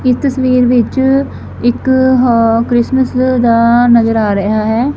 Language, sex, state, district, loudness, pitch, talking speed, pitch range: Punjabi, female, Punjab, Fazilka, -11 LUFS, 245 Hz, 135 wpm, 230-260 Hz